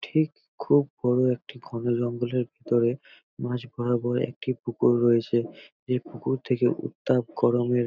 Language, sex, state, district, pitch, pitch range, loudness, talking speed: Bengali, male, West Bengal, North 24 Parganas, 120 Hz, 120-125 Hz, -26 LUFS, 130 wpm